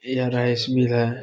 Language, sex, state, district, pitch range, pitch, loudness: Hindi, male, Bihar, Saharsa, 120-130 Hz, 125 Hz, -22 LUFS